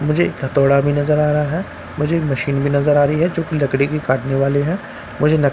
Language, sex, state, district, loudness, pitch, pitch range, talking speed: Hindi, male, Bihar, Katihar, -17 LUFS, 145 Hz, 140-155 Hz, 270 wpm